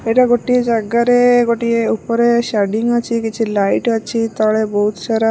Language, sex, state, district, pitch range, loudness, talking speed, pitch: Odia, female, Odisha, Malkangiri, 220-235 Hz, -15 LUFS, 145 wpm, 230 Hz